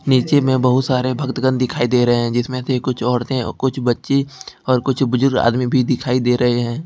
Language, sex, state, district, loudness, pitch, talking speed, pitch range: Hindi, male, Jharkhand, Ranchi, -17 LUFS, 130 Hz, 220 wpm, 125-130 Hz